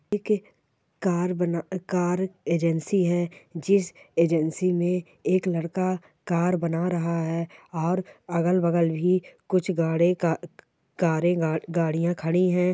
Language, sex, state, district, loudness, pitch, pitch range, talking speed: Hindi, female, Bihar, Sitamarhi, -25 LUFS, 175 Hz, 165-185 Hz, 130 wpm